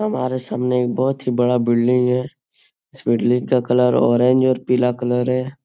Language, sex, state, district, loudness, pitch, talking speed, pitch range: Hindi, male, Bihar, Supaul, -18 LUFS, 125 Hz, 180 wpm, 125-130 Hz